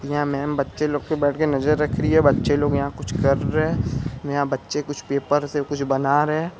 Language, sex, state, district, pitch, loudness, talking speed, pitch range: Hindi, male, Bihar, Araria, 145 Hz, -22 LUFS, 245 wpm, 140-150 Hz